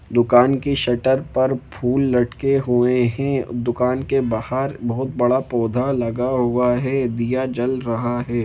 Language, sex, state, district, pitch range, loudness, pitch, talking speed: Hindi, male, Jharkhand, Jamtara, 120-130 Hz, -20 LUFS, 125 Hz, 150 wpm